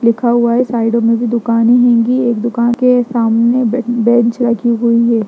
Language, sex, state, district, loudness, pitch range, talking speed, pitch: Hindi, female, Bihar, Jamui, -12 LUFS, 230-240 Hz, 195 wpm, 235 Hz